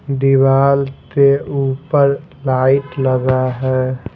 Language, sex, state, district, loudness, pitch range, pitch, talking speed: Hindi, male, Bihar, Patna, -15 LUFS, 130-140 Hz, 135 Hz, 85 wpm